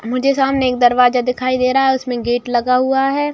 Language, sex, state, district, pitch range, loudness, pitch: Hindi, female, Bihar, Saran, 245-270 Hz, -15 LUFS, 255 Hz